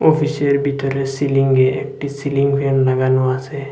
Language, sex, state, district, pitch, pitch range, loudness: Bengali, male, Assam, Hailakandi, 140 Hz, 135-140 Hz, -17 LUFS